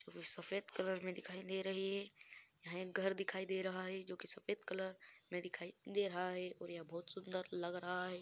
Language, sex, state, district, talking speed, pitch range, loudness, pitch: Hindi, female, Bihar, Vaishali, 225 wpm, 180-190 Hz, -44 LUFS, 185 Hz